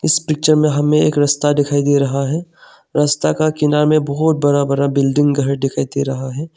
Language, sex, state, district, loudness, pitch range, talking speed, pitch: Hindi, male, Arunachal Pradesh, Longding, -16 LUFS, 140-155 Hz, 210 wpm, 145 Hz